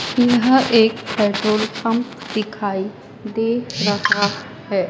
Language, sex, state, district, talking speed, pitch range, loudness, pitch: Hindi, female, Madhya Pradesh, Dhar, 100 wpm, 205-235 Hz, -19 LUFS, 220 Hz